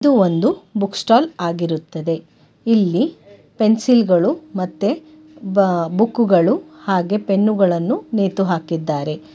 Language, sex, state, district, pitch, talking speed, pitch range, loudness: Kannada, female, Karnataka, Bangalore, 200 Hz, 95 wpm, 170-240 Hz, -18 LUFS